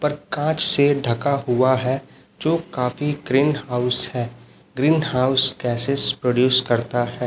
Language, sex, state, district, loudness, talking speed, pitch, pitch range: Hindi, male, Chhattisgarh, Raipur, -18 LUFS, 140 wpm, 130 Hz, 125-145 Hz